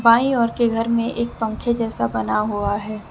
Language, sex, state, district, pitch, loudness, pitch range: Hindi, female, Jharkhand, Deoghar, 230 Hz, -21 LUFS, 210-235 Hz